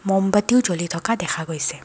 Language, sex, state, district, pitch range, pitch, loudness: Assamese, female, Assam, Kamrup Metropolitan, 170-205 Hz, 185 Hz, -21 LUFS